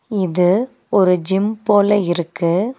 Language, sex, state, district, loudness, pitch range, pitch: Tamil, female, Tamil Nadu, Nilgiris, -17 LUFS, 180-210 Hz, 195 Hz